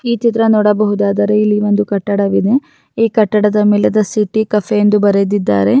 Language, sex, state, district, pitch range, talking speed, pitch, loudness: Kannada, female, Karnataka, Raichur, 205-215 Hz, 85 wpm, 210 Hz, -13 LUFS